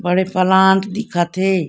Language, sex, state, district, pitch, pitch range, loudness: Chhattisgarhi, female, Chhattisgarh, Korba, 185 Hz, 180-190 Hz, -16 LUFS